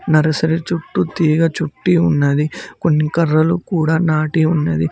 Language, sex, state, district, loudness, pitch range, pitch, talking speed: Telugu, male, Telangana, Mahabubabad, -16 LUFS, 155-165 Hz, 160 Hz, 120 wpm